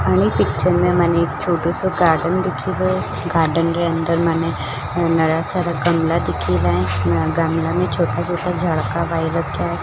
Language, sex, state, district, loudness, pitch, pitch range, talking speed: Marwari, female, Rajasthan, Churu, -18 LUFS, 165 Hz, 105-175 Hz, 155 wpm